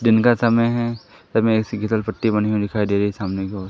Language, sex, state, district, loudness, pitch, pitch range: Hindi, male, Madhya Pradesh, Katni, -20 LUFS, 110 Hz, 105-115 Hz